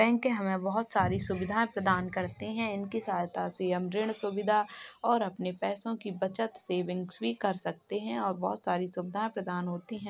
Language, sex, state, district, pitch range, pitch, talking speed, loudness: Hindi, male, Uttar Pradesh, Jalaun, 185-220 Hz, 200 Hz, 185 wpm, -32 LUFS